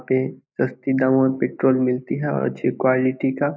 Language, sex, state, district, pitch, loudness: Hindi, male, Bihar, Samastipur, 130 Hz, -21 LUFS